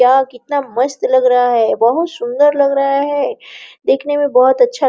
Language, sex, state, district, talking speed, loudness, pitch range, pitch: Hindi, female, Bihar, Araria, 195 wpm, -14 LUFS, 250-290 Hz, 275 Hz